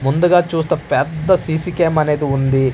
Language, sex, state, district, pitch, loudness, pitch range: Telugu, male, Andhra Pradesh, Manyam, 160 Hz, -16 LUFS, 140-175 Hz